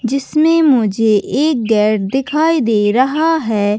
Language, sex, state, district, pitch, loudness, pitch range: Hindi, female, Chhattisgarh, Bastar, 255 Hz, -14 LUFS, 215-305 Hz